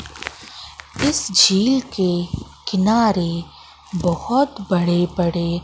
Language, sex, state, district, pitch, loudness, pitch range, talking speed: Hindi, female, Madhya Pradesh, Katni, 185 Hz, -19 LUFS, 175-220 Hz, 75 wpm